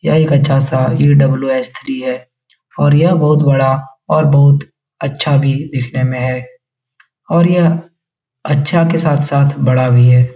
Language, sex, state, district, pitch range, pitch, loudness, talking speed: Hindi, male, Bihar, Jahanabad, 130-150 Hz, 140 Hz, -13 LUFS, 155 wpm